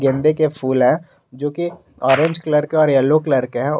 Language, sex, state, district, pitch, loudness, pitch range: Hindi, male, Jharkhand, Garhwa, 150 Hz, -17 LUFS, 135-155 Hz